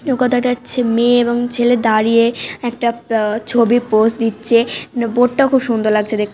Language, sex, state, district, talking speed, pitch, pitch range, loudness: Bengali, female, West Bengal, Malda, 170 wpm, 235 Hz, 225-245 Hz, -15 LUFS